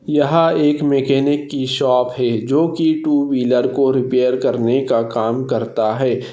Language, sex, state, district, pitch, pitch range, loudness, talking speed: Hindi, male, Maharashtra, Solapur, 135 Hz, 125-145 Hz, -17 LUFS, 160 wpm